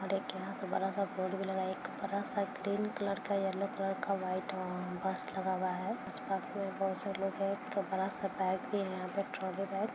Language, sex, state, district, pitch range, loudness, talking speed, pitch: Hindi, female, Bihar, Jahanabad, 190-200 Hz, -37 LUFS, 260 wpm, 195 Hz